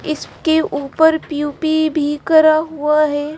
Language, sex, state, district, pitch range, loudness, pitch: Hindi, female, Madhya Pradesh, Bhopal, 295-315 Hz, -16 LUFS, 310 Hz